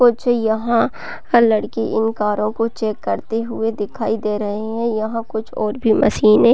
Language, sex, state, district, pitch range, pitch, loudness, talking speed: Hindi, female, Chhattisgarh, Raigarh, 215-230 Hz, 220 Hz, -19 LUFS, 185 wpm